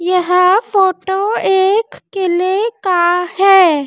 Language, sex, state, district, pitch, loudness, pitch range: Hindi, female, Madhya Pradesh, Dhar, 380 Hz, -13 LUFS, 360-390 Hz